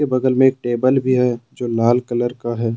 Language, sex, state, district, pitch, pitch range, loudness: Hindi, male, Jharkhand, Deoghar, 125 Hz, 120-130 Hz, -18 LUFS